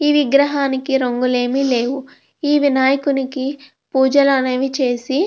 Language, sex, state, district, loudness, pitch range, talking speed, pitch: Telugu, female, Andhra Pradesh, Krishna, -17 LUFS, 260-280 Hz, 125 wpm, 270 Hz